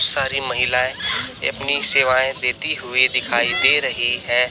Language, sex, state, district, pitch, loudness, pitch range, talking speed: Hindi, male, Chhattisgarh, Raipur, 125 Hz, -17 LUFS, 125-130 Hz, 135 wpm